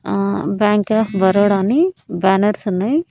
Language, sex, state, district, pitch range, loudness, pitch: Telugu, female, Andhra Pradesh, Annamaya, 190-215 Hz, -16 LUFS, 205 Hz